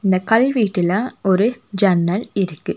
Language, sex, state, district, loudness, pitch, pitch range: Tamil, female, Tamil Nadu, Nilgiris, -18 LUFS, 195 Hz, 185-225 Hz